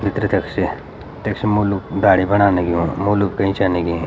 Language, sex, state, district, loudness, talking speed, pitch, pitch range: Garhwali, male, Uttarakhand, Uttarkashi, -18 LUFS, 190 wpm, 100 Hz, 90-100 Hz